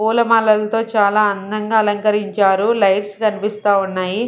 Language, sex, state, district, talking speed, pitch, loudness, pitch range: Telugu, female, Andhra Pradesh, Sri Satya Sai, 100 wpm, 210 Hz, -16 LUFS, 205-220 Hz